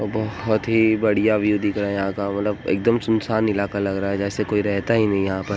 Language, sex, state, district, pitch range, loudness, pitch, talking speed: Hindi, male, Uttar Pradesh, Muzaffarnagar, 100-110 Hz, -21 LUFS, 105 Hz, 250 wpm